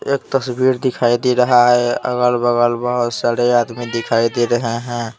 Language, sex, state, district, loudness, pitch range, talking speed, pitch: Hindi, male, Bihar, Patna, -16 LUFS, 120-125 Hz, 175 wpm, 120 Hz